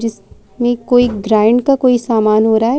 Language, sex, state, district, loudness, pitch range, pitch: Hindi, female, Uttar Pradesh, Jyotiba Phule Nagar, -13 LUFS, 220-245 Hz, 235 Hz